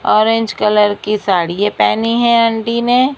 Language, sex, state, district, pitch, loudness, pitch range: Hindi, female, Maharashtra, Mumbai Suburban, 220 Hz, -14 LUFS, 205-230 Hz